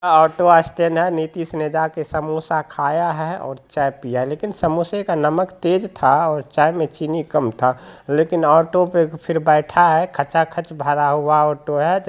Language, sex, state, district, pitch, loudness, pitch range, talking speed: Maithili, male, Bihar, Supaul, 160 Hz, -18 LUFS, 150-170 Hz, 185 wpm